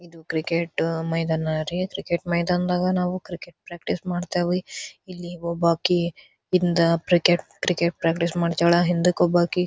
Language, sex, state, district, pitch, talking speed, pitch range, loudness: Kannada, female, Karnataka, Dharwad, 175 Hz, 120 wpm, 170-180 Hz, -23 LUFS